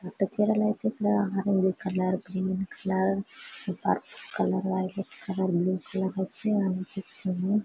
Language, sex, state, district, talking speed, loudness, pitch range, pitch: Telugu, female, Telangana, Karimnagar, 110 wpm, -29 LUFS, 185-200 Hz, 190 Hz